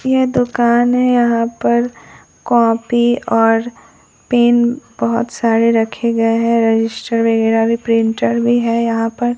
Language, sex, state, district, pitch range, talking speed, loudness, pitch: Hindi, male, Bihar, Katihar, 230-240 Hz, 135 wpm, -15 LUFS, 235 Hz